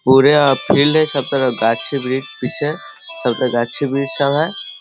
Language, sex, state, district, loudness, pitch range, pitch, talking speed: Hindi, male, Bihar, Sitamarhi, -15 LUFS, 130-145 Hz, 140 Hz, 150 wpm